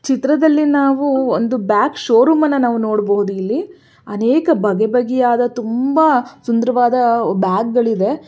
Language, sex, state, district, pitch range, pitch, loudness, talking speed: Kannada, female, Karnataka, Belgaum, 225-280 Hz, 245 Hz, -15 LUFS, 115 wpm